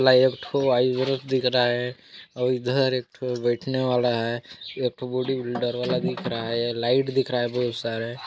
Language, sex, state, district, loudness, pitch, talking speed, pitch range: Hindi, male, Chhattisgarh, Balrampur, -24 LUFS, 125 Hz, 220 wpm, 120-130 Hz